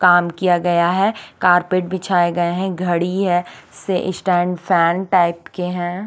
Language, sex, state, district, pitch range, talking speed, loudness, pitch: Hindi, female, Chandigarh, Chandigarh, 175-185 Hz, 170 wpm, -18 LUFS, 180 Hz